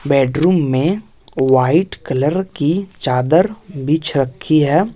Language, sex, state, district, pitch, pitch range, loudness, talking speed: Hindi, male, Bihar, West Champaran, 155 Hz, 135-180 Hz, -16 LUFS, 110 wpm